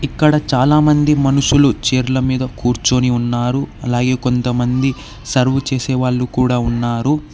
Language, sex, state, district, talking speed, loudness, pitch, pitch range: Telugu, male, Telangana, Hyderabad, 115 wpm, -15 LUFS, 130 Hz, 125-140 Hz